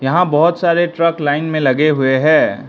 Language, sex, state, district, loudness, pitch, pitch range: Hindi, male, Arunachal Pradesh, Lower Dibang Valley, -14 LUFS, 155 Hz, 145-170 Hz